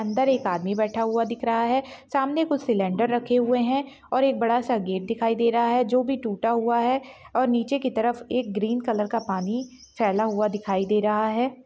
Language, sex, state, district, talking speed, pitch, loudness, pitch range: Hindi, female, Chhattisgarh, Balrampur, 225 wpm, 235 Hz, -24 LUFS, 220-255 Hz